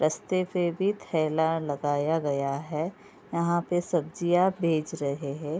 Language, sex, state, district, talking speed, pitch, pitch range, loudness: Hindi, female, Uttar Pradesh, Budaun, 140 wpm, 160 Hz, 150-175 Hz, -28 LUFS